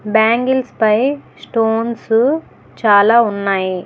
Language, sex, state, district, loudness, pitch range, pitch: Telugu, female, Telangana, Hyderabad, -15 LUFS, 210-240 Hz, 225 Hz